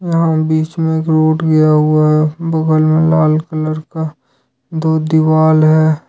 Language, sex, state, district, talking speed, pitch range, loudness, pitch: Hindi, male, Jharkhand, Ranchi, 155 wpm, 155-160 Hz, -13 LUFS, 155 Hz